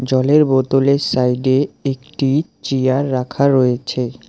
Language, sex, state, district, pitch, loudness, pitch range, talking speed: Bengali, male, West Bengal, Alipurduar, 130 Hz, -16 LUFS, 130-140 Hz, 100 wpm